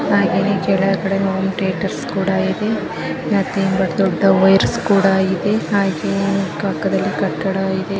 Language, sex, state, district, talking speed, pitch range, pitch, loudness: Kannada, female, Karnataka, Bellary, 105 wpm, 190-195 Hz, 195 Hz, -17 LUFS